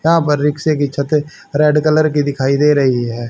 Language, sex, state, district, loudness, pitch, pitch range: Hindi, male, Haryana, Rohtak, -15 LUFS, 150 Hz, 140-155 Hz